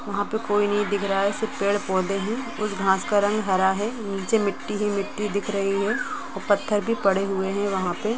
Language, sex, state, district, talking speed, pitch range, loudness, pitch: Hindi, female, Jharkhand, Sahebganj, 225 wpm, 195-210 Hz, -24 LUFS, 205 Hz